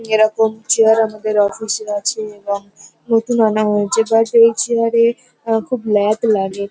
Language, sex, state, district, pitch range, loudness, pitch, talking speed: Bengali, female, West Bengal, North 24 Parganas, 210-225 Hz, -16 LUFS, 220 Hz, 150 wpm